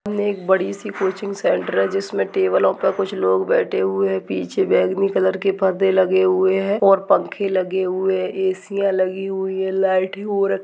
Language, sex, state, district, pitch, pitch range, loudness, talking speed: Hindi, female, Uttarakhand, Tehri Garhwal, 190 Hz, 185-195 Hz, -19 LUFS, 190 wpm